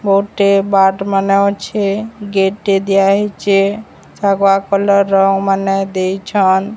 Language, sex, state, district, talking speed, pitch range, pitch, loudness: Odia, male, Odisha, Sambalpur, 115 wpm, 195-200 Hz, 195 Hz, -14 LUFS